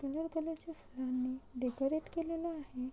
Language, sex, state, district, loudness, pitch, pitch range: Marathi, female, Maharashtra, Chandrapur, -39 LUFS, 285 Hz, 255-325 Hz